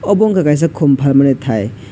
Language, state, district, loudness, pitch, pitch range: Kokborok, Tripura, West Tripura, -13 LUFS, 140 Hz, 130-165 Hz